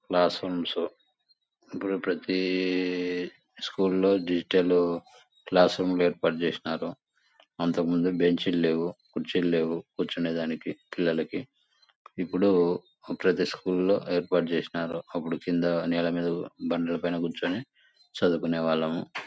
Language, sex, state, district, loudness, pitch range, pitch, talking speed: Telugu, male, Andhra Pradesh, Anantapur, -28 LUFS, 85-90 Hz, 85 Hz, 90 wpm